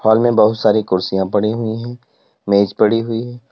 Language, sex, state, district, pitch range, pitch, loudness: Hindi, male, Uttar Pradesh, Lalitpur, 105-115 Hz, 110 Hz, -16 LUFS